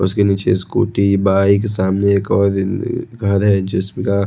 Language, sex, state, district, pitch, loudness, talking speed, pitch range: Hindi, male, Odisha, Khordha, 100 Hz, -16 LUFS, 140 wpm, 95-100 Hz